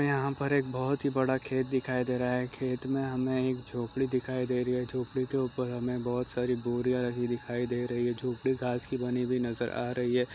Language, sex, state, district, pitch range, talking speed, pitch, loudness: Hindi, male, Chhattisgarh, Sukma, 125-130 Hz, 225 wpm, 125 Hz, -31 LUFS